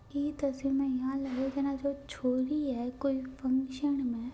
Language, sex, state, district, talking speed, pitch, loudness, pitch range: Hindi, female, Rajasthan, Nagaur, 150 wpm, 270 Hz, -33 LUFS, 260-280 Hz